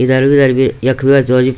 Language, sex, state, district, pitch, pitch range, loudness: Garhwali, male, Uttarakhand, Tehri Garhwal, 130 Hz, 130-135 Hz, -11 LUFS